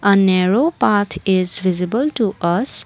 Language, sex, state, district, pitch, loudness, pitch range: English, female, Assam, Kamrup Metropolitan, 190 Hz, -16 LUFS, 180-210 Hz